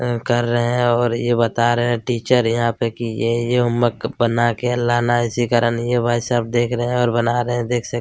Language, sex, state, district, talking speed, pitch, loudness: Hindi, male, Chhattisgarh, Kabirdham, 245 wpm, 120 Hz, -19 LUFS